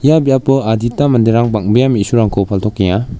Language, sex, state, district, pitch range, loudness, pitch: Garo, male, Meghalaya, West Garo Hills, 105-130 Hz, -13 LUFS, 115 Hz